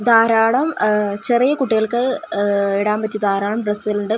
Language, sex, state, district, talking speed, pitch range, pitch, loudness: Malayalam, female, Kerala, Wayanad, 160 wpm, 205-235 Hz, 215 Hz, -17 LUFS